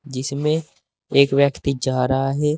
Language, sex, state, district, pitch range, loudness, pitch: Hindi, male, Uttar Pradesh, Saharanpur, 135-145 Hz, -20 LUFS, 140 Hz